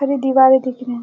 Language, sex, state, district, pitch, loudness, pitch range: Hindi, female, Bihar, Kishanganj, 265 Hz, -14 LUFS, 255-265 Hz